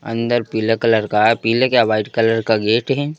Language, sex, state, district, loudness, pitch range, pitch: Hindi, male, Madhya Pradesh, Bhopal, -16 LUFS, 110-120 Hz, 115 Hz